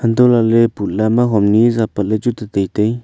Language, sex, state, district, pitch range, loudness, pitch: Wancho, male, Arunachal Pradesh, Longding, 105-120 Hz, -15 LUFS, 115 Hz